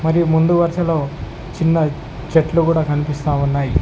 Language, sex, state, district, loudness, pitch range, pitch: Telugu, male, Telangana, Mahabubabad, -17 LUFS, 140-165 Hz, 160 Hz